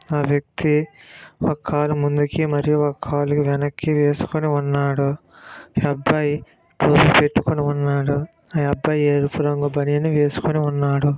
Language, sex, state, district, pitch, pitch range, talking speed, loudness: Telugu, male, Andhra Pradesh, Srikakulam, 145 Hz, 145-150 Hz, 125 wpm, -20 LUFS